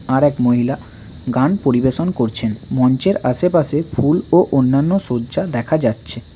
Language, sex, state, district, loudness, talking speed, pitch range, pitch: Bengali, male, West Bengal, Cooch Behar, -17 LUFS, 125 wpm, 120-155 Hz, 130 Hz